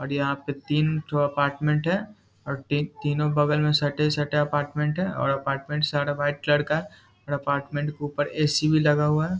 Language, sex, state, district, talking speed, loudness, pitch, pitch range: Hindi, male, Bihar, Muzaffarpur, 190 wpm, -25 LUFS, 145 Hz, 145-150 Hz